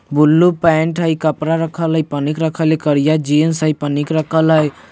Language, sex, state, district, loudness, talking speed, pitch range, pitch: Bajjika, male, Bihar, Vaishali, -15 LUFS, 185 wpm, 150-160 Hz, 155 Hz